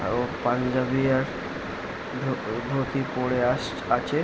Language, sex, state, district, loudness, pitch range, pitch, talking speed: Bengali, male, West Bengal, Jhargram, -27 LUFS, 125-135 Hz, 125 Hz, 125 wpm